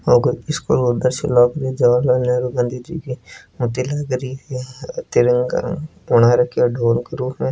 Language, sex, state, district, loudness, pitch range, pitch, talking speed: Hindi, male, Rajasthan, Nagaur, -18 LUFS, 120-135 Hz, 125 Hz, 160 wpm